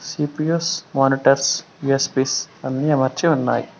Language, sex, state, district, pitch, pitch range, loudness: Telugu, male, Telangana, Mahabubabad, 140 Hz, 135-160 Hz, -20 LUFS